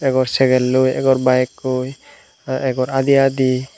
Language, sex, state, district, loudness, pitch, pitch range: Chakma, male, Tripura, Unakoti, -17 LUFS, 130 Hz, 130-135 Hz